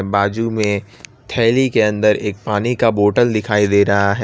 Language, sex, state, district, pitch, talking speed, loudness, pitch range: Hindi, male, Gujarat, Valsad, 105 Hz, 185 wpm, -16 LUFS, 100-115 Hz